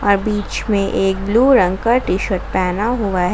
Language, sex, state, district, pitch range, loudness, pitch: Hindi, female, Jharkhand, Garhwa, 190-230 Hz, -17 LUFS, 205 Hz